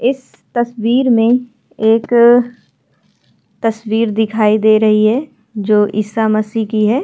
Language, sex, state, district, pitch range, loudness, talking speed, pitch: Hindi, female, Uttarakhand, Tehri Garhwal, 215-240 Hz, -14 LUFS, 120 wpm, 225 Hz